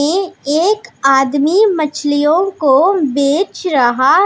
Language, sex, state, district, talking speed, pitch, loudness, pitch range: Hindi, female, Punjab, Pathankot, 100 wpm, 300 Hz, -13 LUFS, 280-370 Hz